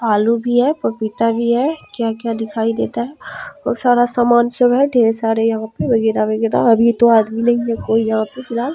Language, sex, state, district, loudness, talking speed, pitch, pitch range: Maithili, female, Bihar, Supaul, -16 LUFS, 200 wpm, 230 Hz, 225-240 Hz